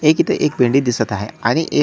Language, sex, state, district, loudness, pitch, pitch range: Marathi, male, Maharashtra, Solapur, -17 LUFS, 125 Hz, 115-150 Hz